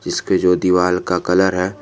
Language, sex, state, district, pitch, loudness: Hindi, male, Jharkhand, Garhwa, 90 Hz, -16 LUFS